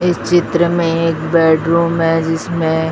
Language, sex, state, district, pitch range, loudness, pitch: Hindi, male, Chhattisgarh, Raipur, 165-170 Hz, -14 LUFS, 165 Hz